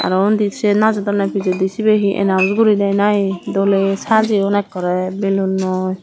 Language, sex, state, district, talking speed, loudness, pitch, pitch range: Chakma, female, Tripura, Dhalai, 150 wpm, -16 LUFS, 195 Hz, 190-205 Hz